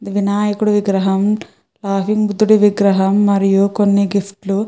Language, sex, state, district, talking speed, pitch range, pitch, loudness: Telugu, female, Andhra Pradesh, Chittoor, 100 wpm, 195-210 Hz, 200 Hz, -15 LUFS